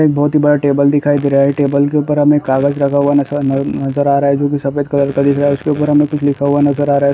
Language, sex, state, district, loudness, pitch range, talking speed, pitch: Hindi, male, Bihar, Gaya, -13 LUFS, 140-145 Hz, 325 wpm, 145 Hz